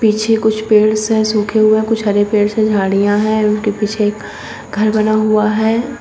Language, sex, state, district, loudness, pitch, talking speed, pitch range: Hindi, female, Uttar Pradesh, Shamli, -14 LUFS, 215 Hz, 200 wpm, 210-220 Hz